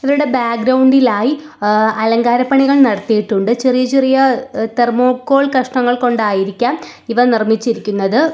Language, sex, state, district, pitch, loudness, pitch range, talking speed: Malayalam, female, Kerala, Kollam, 245 Hz, -14 LUFS, 225-265 Hz, 100 wpm